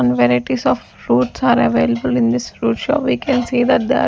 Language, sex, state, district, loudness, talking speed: English, female, Maharashtra, Gondia, -16 LUFS, 235 wpm